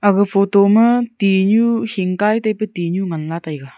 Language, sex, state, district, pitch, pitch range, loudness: Wancho, female, Arunachal Pradesh, Longding, 200 Hz, 185-215 Hz, -16 LUFS